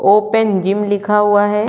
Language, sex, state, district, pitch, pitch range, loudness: Hindi, female, Chhattisgarh, Korba, 205 Hz, 205-210 Hz, -14 LUFS